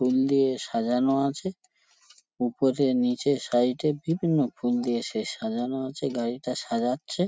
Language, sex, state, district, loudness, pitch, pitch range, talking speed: Bengali, male, West Bengal, Paschim Medinipur, -26 LUFS, 135 Hz, 125-155 Hz, 130 wpm